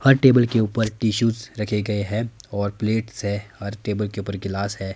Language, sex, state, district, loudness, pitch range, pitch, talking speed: Hindi, male, Himachal Pradesh, Shimla, -23 LUFS, 100-115 Hz, 105 Hz, 205 wpm